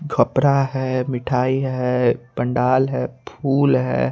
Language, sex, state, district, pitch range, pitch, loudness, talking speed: Hindi, male, Chandigarh, Chandigarh, 125-135 Hz, 130 Hz, -20 LUFS, 115 wpm